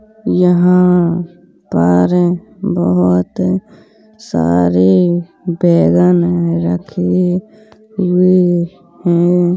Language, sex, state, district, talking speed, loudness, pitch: Hindi, female, Uttar Pradesh, Hamirpur, 50 wpm, -13 LUFS, 175 Hz